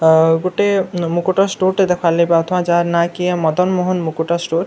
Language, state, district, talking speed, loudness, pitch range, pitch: Sambalpuri, Odisha, Sambalpur, 180 wpm, -16 LUFS, 170-185 Hz, 175 Hz